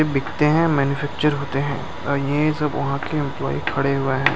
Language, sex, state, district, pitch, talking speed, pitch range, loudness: Hindi, male, Maharashtra, Mumbai Suburban, 140 Hz, 180 wpm, 140-150 Hz, -21 LUFS